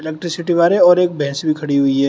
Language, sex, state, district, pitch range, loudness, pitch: Hindi, male, Uttar Pradesh, Shamli, 140-170 Hz, -15 LUFS, 160 Hz